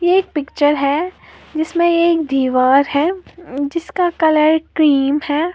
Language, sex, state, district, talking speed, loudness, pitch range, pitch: Hindi, female, Uttar Pradesh, Lalitpur, 130 wpm, -16 LUFS, 285-340 Hz, 310 Hz